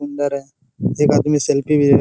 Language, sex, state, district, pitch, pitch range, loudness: Hindi, male, Bihar, Araria, 145 Hz, 140-145 Hz, -17 LUFS